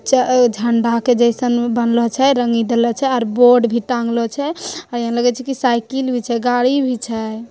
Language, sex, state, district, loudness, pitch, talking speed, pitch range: Hindi, female, Bihar, Begusarai, -16 LUFS, 245 Hz, 175 wpm, 235-255 Hz